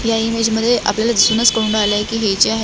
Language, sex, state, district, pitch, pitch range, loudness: Marathi, female, Maharashtra, Dhule, 225 Hz, 215-230 Hz, -15 LUFS